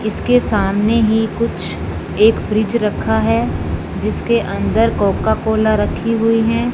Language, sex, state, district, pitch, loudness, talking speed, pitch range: Hindi, female, Punjab, Fazilka, 220 Hz, -16 LUFS, 125 wpm, 195-230 Hz